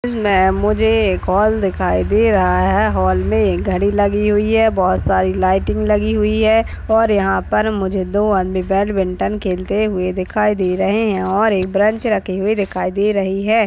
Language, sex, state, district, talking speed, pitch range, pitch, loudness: Hindi, female, Maharashtra, Aurangabad, 180 wpm, 185-215 Hz, 200 Hz, -16 LUFS